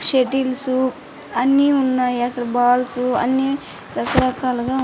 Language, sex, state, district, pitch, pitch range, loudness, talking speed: Telugu, female, Andhra Pradesh, Anantapur, 255 Hz, 245-265 Hz, -19 LUFS, 125 wpm